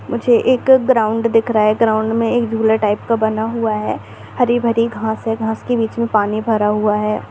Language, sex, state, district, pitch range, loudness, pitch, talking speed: Hindi, female, Bihar, Bhagalpur, 215-235 Hz, -16 LUFS, 225 Hz, 215 wpm